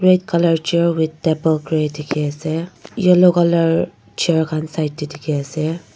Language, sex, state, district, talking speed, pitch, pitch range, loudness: Nagamese, female, Nagaland, Dimapur, 140 wpm, 160 Hz, 155-170 Hz, -18 LUFS